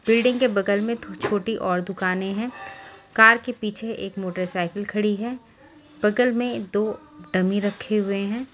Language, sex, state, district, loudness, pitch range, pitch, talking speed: Hindi, female, Delhi, New Delhi, -23 LUFS, 195-235 Hz, 210 Hz, 155 wpm